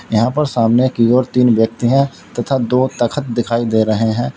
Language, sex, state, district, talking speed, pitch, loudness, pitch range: Hindi, male, Uttar Pradesh, Lalitpur, 205 wpm, 120 Hz, -15 LUFS, 115-130 Hz